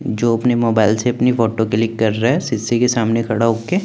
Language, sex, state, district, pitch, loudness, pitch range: Hindi, male, Chandigarh, Chandigarh, 115 Hz, -17 LUFS, 110-120 Hz